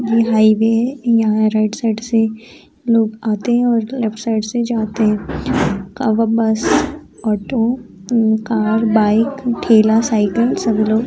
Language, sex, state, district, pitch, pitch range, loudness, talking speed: Hindi, female, Uttar Pradesh, Jyotiba Phule Nagar, 225 Hz, 215-235 Hz, -16 LUFS, 135 wpm